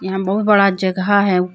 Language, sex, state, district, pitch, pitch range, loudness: Hindi, female, Jharkhand, Deoghar, 190 Hz, 185-200 Hz, -15 LUFS